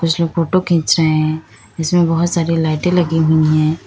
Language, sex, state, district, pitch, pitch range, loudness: Hindi, female, Uttar Pradesh, Lalitpur, 165 Hz, 155-170 Hz, -15 LUFS